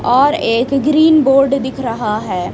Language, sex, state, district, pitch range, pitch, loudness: Hindi, female, Chhattisgarh, Raipur, 235-280 Hz, 270 Hz, -13 LUFS